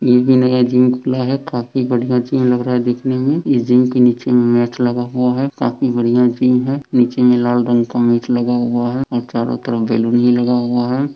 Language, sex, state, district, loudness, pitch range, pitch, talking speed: Hindi, male, Bihar, Sitamarhi, -15 LUFS, 120-125 Hz, 125 Hz, 235 wpm